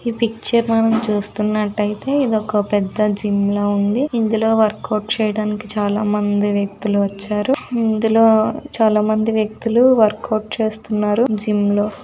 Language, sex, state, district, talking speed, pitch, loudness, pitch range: Telugu, female, Andhra Pradesh, Visakhapatnam, 120 wpm, 215 Hz, -18 LUFS, 210-225 Hz